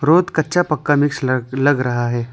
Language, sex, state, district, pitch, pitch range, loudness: Hindi, male, Arunachal Pradesh, Lower Dibang Valley, 145 Hz, 130-155 Hz, -17 LUFS